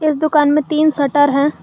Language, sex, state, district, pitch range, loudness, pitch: Hindi, male, Jharkhand, Garhwa, 290-310 Hz, -14 LUFS, 300 Hz